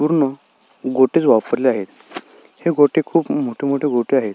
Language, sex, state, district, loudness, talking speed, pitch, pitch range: Marathi, male, Maharashtra, Sindhudurg, -18 LUFS, 150 wpm, 145 Hz, 135-165 Hz